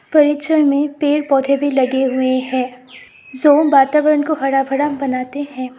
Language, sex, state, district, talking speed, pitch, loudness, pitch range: Hindi, female, Assam, Sonitpur, 155 wpm, 275 Hz, -15 LUFS, 260-295 Hz